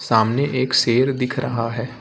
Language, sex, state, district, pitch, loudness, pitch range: Hindi, male, Uttar Pradesh, Lucknow, 125 Hz, -19 LUFS, 115-130 Hz